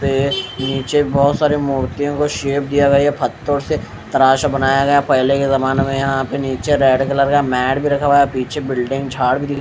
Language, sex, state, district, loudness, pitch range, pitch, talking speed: Hindi, male, Maharashtra, Mumbai Suburban, -16 LUFS, 135-145 Hz, 140 Hz, 230 wpm